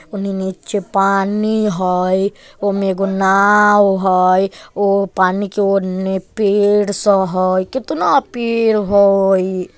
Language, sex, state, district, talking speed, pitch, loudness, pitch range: Bajjika, male, Bihar, Vaishali, 115 wpm, 195 Hz, -15 LUFS, 190-205 Hz